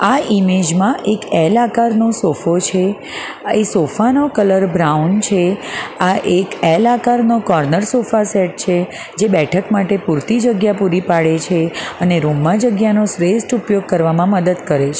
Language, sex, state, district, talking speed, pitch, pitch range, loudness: Gujarati, female, Gujarat, Valsad, 155 wpm, 195 Hz, 175-220 Hz, -15 LUFS